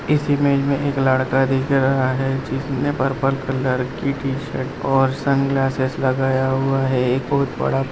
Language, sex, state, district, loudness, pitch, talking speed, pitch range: Hindi, male, Bihar, Gaya, -20 LUFS, 135 Hz, 175 wpm, 130-140 Hz